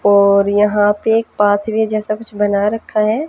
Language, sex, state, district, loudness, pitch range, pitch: Hindi, female, Haryana, Jhajjar, -15 LUFS, 205-220 Hz, 210 Hz